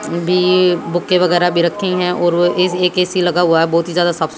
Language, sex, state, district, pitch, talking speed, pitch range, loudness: Hindi, female, Haryana, Jhajjar, 175 Hz, 235 wpm, 170-180 Hz, -14 LUFS